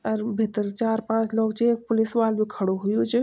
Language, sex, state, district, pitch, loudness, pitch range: Garhwali, female, Uttarakhand, Tehri Garhwal, 220 Hz, -24 LUFS, 210-225 Hz